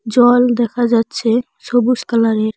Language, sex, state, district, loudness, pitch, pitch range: Bengali, female, West Bengal, Cooch Behar, -15 LUFS, 240 Hz, 225-245 Hz